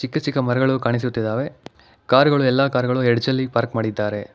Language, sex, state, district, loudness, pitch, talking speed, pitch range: Kannada, male, Karnataka, Bangalore, -20 LUFS, 125 Hz, 180 wpm, 115-135 Hz